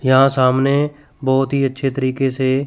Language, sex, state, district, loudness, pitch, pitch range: Hindi, male, Chandigarh, Chandigarh, -17 LUFS, 135 Hz, 130-140 Hz